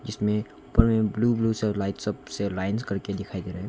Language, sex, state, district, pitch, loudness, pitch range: Hindi, male, Arunachal Pradesh, Longding, 105 Hz, -26 LUFS, 100-110 Hz